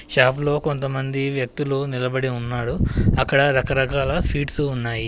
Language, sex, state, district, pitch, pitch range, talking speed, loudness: Telugu, male, Telangana, Adilabad, 135 Hz, 125-140 Hz, 105 wpm, -21 LUFS